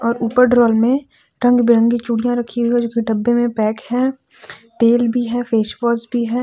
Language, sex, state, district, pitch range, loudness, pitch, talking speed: Hindi, female, Jharkhand, Deoghar, 230-245 Hz, -16 LUFS, 235 Hz, 195 wpm